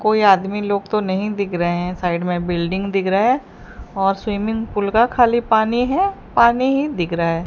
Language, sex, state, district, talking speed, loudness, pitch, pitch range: Hindi, female, Odisha, Sambalpur, 210 wpm, -18 LUFS, 205 Hz, 185-230 Hz